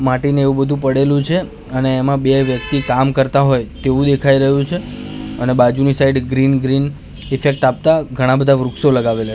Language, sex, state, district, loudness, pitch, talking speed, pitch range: Gujarati, male, Gujarat, Gandhinagar, -15 LUFS, 135 Hz, 175 wpm, 130-140 Hz